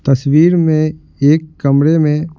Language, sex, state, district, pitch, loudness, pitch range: Hindi, male, Bihar, Patna, 155 Hz, -13 LUFS, 145-160 Hz